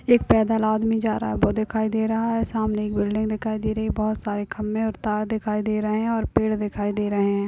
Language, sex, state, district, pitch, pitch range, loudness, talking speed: Hindi, female, Uttar Pradesh, Deoria, 215 Hz, 210-220 Hz, -23 LUFS, 265 wpm